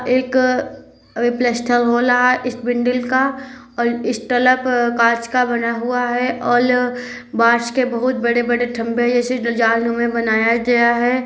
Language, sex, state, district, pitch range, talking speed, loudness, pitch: Hindi, female, Uttar Pradesh, Hamirpur, 235-250 Hz, 150 wpm, -17 LUFS, 245 Hz